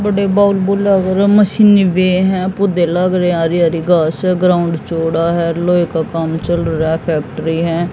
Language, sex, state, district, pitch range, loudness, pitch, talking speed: Hindi, female, Haryana, Jhajjar, 165-190 Hz, -14 LUFS, 175 Hz, 165 wpm